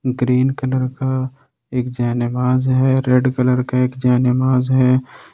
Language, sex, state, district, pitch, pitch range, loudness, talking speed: Hindi, male, Jharkhand, Ranchi, 130 Hz, 125-130 Hz, -17 LUFS, 125 wpm